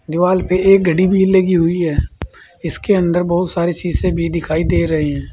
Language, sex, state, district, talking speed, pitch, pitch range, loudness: Hindi, male, Uttar Pradesh, Saharanpur, 200 wpm, 175 Hz, 170-185 Hz, -15 LUFS